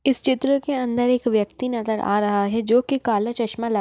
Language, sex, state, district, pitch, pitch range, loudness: Hindi, female, Maharashtra, Chandrapur, 235 Hz, 215-255 Hz, -21 LUFS